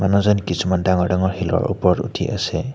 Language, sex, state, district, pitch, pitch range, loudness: Assamese, male, Assam, Hailakandi, 95 Hz, 90-100 Hz, -19 LUFS